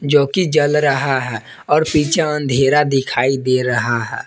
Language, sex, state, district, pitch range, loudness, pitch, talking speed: Hindi, male, Jharkhand, Palamu, 130-150 Hz, -16 LUFS, 135 Hz, 170 wpm